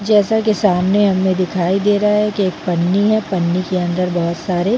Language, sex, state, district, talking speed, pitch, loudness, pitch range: Hindi, female, Chhattisgarh, Bilaspur, 215 wpm, 190 Hz, -16 LUFS, 180-210 Hz